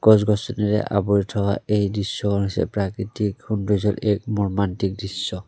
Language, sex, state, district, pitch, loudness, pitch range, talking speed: Assamese, male, Assam, Kamrup Metropolitan, 100 Hz, -22 LUFS, 100-105 Hz, 120 wpm